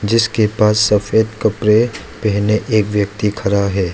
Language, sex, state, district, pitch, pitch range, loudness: Hindi, male, Arunachal Pradesh, Lower Dibang Valley, 105 Hz, 100-110 Hz, -15 LUFS